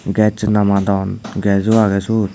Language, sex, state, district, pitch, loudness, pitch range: Chakma, male, Tripura, Dhalai, 100 Hz, -16 LUFS, 100-110 Hz